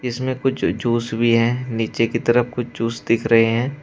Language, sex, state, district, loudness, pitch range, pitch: Hindi, male, Uttar Pradesh, Shamli, -19 LUFS, 115-125 Hz, 115 Hz